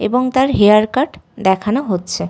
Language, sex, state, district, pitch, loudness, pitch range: Bengali, female, West Bengal, Malda, 215 Hz, -15 LUFS, 190-255 Hz